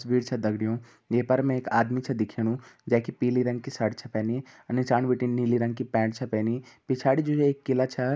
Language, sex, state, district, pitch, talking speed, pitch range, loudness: Garhwali, male, Uttarakhand, Uttarkashi, 125 Hz, 240 wpm, 115-130 Hz, -27 LUFS